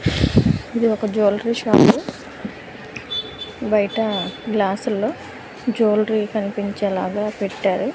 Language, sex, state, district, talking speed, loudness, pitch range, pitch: Telugu, female, Andhra Pradesh, Manyam, 75 wpm, -20 LUFS, 200-225 Hz, 210 Hz